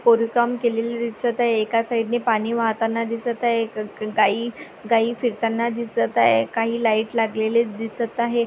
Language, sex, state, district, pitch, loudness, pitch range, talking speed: Marathi, female, Maharashtra, Pune, 230 Hz, -22 LUFS, 225-235 Hz, 170 wpm